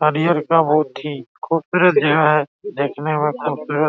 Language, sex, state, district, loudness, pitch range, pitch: Hindi, male, Bihar, Araria, -18 LUFS, 150-165 Hz, 150 Hz